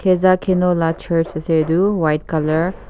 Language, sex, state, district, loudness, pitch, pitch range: Nagamese, female, Nagaland, Kohima, -17 LUFS, 165 Hz, 160-185 Hz